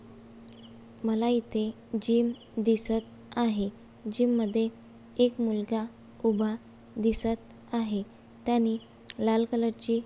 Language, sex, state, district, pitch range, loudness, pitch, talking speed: Marathi, female, Maharashtra, Sindhudurg, 205-230 Hz, -29 LUFS, 225 Hz, 100 wpm